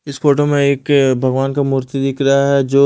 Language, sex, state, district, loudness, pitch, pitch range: Hindi, male, Odisha, Malkangiri, -15 LUFS, 140 Hz, 135-140 Hz